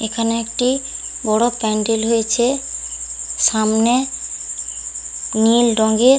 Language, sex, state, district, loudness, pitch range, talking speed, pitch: Bengali, female, West Bengal, Paschim Medinipur, -18 LUFS, 215-245 Hz, 80 wpm, 225 Hz